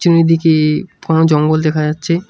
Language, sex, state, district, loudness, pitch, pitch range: Bengali, male, West Bengal, Cooch Behar, -13 LUFS, 160 Hz, 155-165 Hz